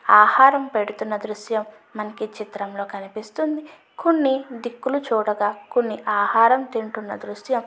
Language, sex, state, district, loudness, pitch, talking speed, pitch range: Telugu, female, Andhra Pradesh, Chittoor, -21 LUFS, 220 Hz, 125 wpm, 210-265 Hz